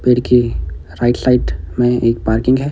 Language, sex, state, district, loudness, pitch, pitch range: Hindi, male, Himachal Pradesh, Shimla, -15 LUFS, 120 Hz, 85-125 Hz